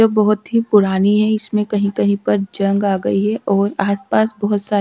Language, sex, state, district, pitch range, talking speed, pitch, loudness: Hindi, female, Haryana, Charkhi Dadri, 195-215 Hz, 210 wpm, 205 Hz, -17 LUFS